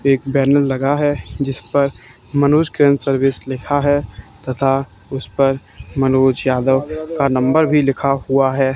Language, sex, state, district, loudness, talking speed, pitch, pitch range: Hindi, male, Haryana, Charkhi Dadri, -17 LUFS, 130 wpm, 135 Hz, 130-140 Hz